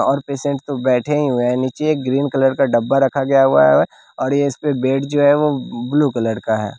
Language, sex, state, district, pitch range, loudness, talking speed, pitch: Hindi, male, Bihar, West Champaran, 125-145 Hz, -17 LUFS, 220 wpm, 135 Hz